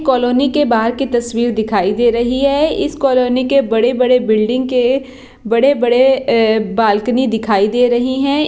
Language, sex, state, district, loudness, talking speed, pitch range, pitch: Hindi, female, Bihar, Jahanabad, -14 LUFS, 155 wpm, 230-265 Hz, 245 Hz